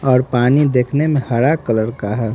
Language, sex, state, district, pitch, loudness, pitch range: Hindi, male, Haryana, Rohtak, 125 Hz, -16 LUFS, 115-140 Hz